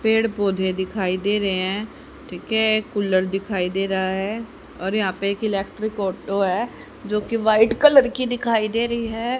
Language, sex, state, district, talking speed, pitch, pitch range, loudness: Hindi, female, Haryana, Charkhi Dadri, 185 wpm, 210 Hz, 195-225 Hz, -21 LUFS